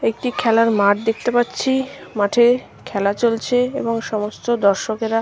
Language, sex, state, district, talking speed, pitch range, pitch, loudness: Bengali, female, West Bengal, Malda, 125 wpm, 210-240 Hz, 230 Hz, -19 LUFS